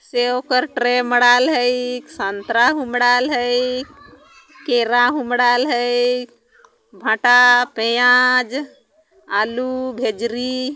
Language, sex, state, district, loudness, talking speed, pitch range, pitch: Sadri, female, Chhattisgarh, Jashpur, -17 LUFS, 90 wpm, 245-260 Hz, 245 Hz